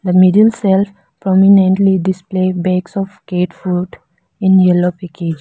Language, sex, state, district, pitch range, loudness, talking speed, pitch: English, female, Arunachal Pradesh, Lower Dibang Valley, 180-195 Hz, -13 LUFS, 135 wpm, 185 Hz